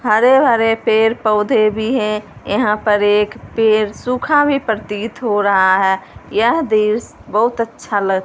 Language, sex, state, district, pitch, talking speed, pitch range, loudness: Hindi, female, Punjab, Fazilka, 215 Hz, 155 wpm, 210-230 Hz, -15 LUFS